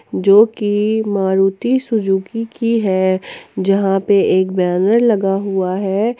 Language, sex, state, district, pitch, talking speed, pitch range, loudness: Hindi, female, Jharkhand, Ranchi, 195 Hz, 125 wpm, 190-220 Hz, -15 LUFS